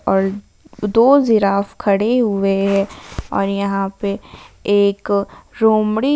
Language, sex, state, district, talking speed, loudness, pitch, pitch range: Hindi, female, Jharkhand, Palamu, 105 wpm, -17 LUFS, 200 Hz, 195-220 Hz